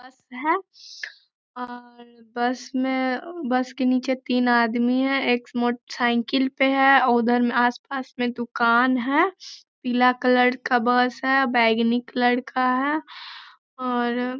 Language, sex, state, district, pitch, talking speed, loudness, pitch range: Hindi, female, Bihar, Begusarai, 250 Hz, 130 wpm, -22 LUFS, 245-265 Hz